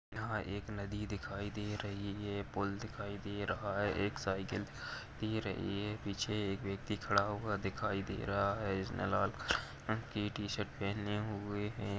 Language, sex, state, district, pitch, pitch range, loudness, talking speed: Hindi, male, Maharashtra, Chandrapur, 100 Hz, 100-105 Hz, -39 LUFS, 170 wpm